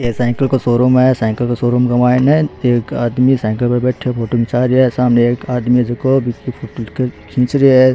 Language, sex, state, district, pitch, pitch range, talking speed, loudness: Rajasthani, male, Rajasthan, Churu, 125 Hz, 120-130 Hz, 220 wpm, -14 LUFS